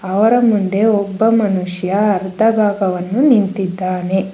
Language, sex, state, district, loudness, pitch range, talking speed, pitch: Kannada, female, Karnataka, Bangalore, -15 LUFS, 190-220 Hz, 95 wpm, 200 Hz